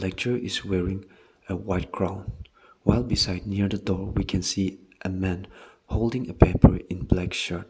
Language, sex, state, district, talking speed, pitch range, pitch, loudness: English, male, Nagaland, Kohima, 170 wpm, 95-105 Hz, 95 Hz, -26 LUFS